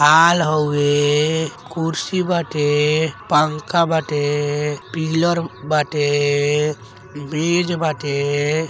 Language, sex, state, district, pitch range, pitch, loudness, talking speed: Bhojpuri, male, Uttar Pradesh, Deoria, 145-160 Hz, 150 Hz, -18 LUFS, 70 wpm